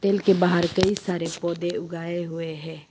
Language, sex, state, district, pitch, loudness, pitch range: Hindi, female, Arunachal Pradesh, Papum Pare, 175 Hz, -24 LUFS, 165-185 Hz